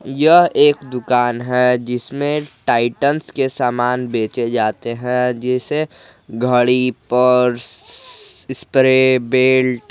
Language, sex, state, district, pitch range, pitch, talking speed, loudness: Hindi, male, Jharkhand, Garhwa, 125-140 Hz, 125 Hz, 105 wpm, -16 LUFS